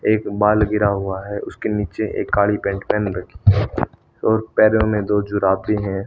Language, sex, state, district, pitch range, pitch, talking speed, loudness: Hindi, male, Haryana, Rohtak, 100-105 Hz, 105 Hz, 180 wpm, -19 LUFS